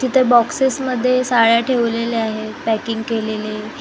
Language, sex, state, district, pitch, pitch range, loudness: Marathi, female, Maharashtra, Gondia, 230 Hz, 220-255 Hz, -17 LUFS